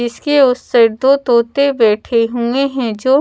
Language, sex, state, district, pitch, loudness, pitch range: Hindi, female, Bihar, Patna, 245 Hz, -13 LUFS, 235-275 Hz